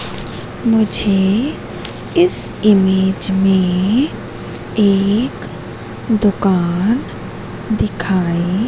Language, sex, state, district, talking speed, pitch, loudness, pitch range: Hindi, female, Madhya Pradesh, Katni, 50 wpm, 200 Hz, -16 LUFS, 190-220 Hz